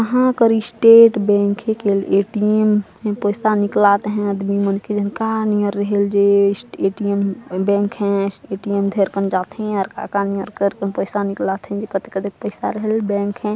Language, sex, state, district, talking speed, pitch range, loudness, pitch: Hindi, male, Chhattisgarh, Jashpur, 80 wpm, 200-215 Hz, -18 LUFS, 205 Hz